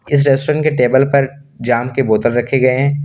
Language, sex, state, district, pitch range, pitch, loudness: Hindi, male, Jharkhand, Deoghar, 125-145 Hz, 135 Hz, -14 LUFS